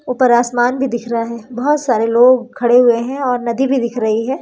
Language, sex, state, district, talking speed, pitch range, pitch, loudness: Hindi, female, Madhya Pradesh, Umaria, 245 wpm, 235-255 Hz, 245 Hz, -15 LUFS